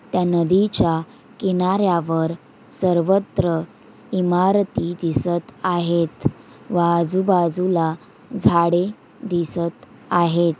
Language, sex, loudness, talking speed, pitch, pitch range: Awadhi, female, -20 LUFS, 70 wpm, 175 Hz, 170-185 Hz